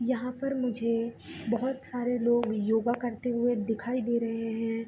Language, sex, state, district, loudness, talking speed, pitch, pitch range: Hindi, female, Bihar, Begusarai, -30 LUFS, 160 wpm, 235 Hz, 230-245 Hz